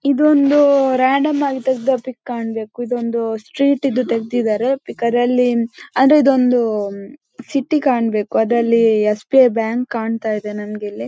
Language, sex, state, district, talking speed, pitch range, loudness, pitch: Kannada, female, Karnataka, Dakshina Kannada, 120 wpm, 225-270 Hz, -17 LUFS, 245 Hz